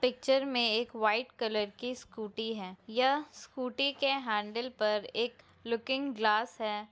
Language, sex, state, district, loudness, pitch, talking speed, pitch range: Hindi, female, Uttarakhand, Tehri Garhwal, -32 LUFS, 230 Hz, 145 wpm, 215-255 Hz